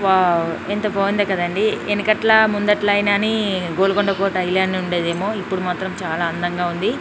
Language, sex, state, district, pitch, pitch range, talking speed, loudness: Telugu, female, Telangana, Nalgonda, 195 Hz, 180-205 Hz, 155 wpm, -19 LUFS